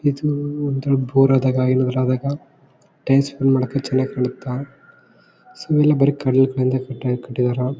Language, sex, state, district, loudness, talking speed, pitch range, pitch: Kannada, male, Karnataka, Bellary, -19 LUFS, 130 wpm, 130-140 Hz, 135 Hz